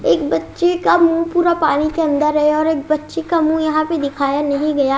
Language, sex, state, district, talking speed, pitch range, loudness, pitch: Hindi, female, Haryana, Jhajjar, 230 wpm, 300-330 Hz, -16 LUFS, 310 Hz